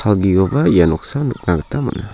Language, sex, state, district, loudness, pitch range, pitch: Garo, male, Meghalaya, South Garo Hills, -16 LUFS, 85-130 Hz, 95 Hz